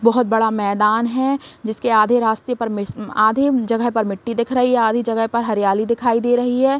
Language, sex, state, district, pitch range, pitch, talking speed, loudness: Hindi, female, Bihar, Saran, 220-245 Hz, 230 Hz, 210 wpm, -18 LUFS